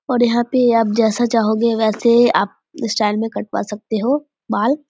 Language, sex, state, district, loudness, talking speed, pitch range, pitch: Hindi, female, Bihar, Vaishali, -17 LUFS, 185 wpm, 220-245 Hz, 230 Hz